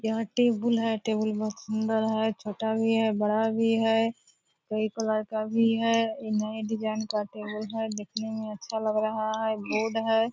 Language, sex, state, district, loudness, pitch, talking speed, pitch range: Hindi, female, Bihar, Purnia, -28 LUFS, 220 Hz, 180 wpm, 215-225 Hz